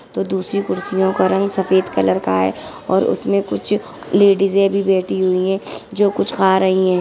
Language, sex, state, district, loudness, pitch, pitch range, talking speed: Hindi, female, Uttarakhand, Tehri Garhwal, -17 LUFS, 190 Hz, 185-200 Hz, 195 wpm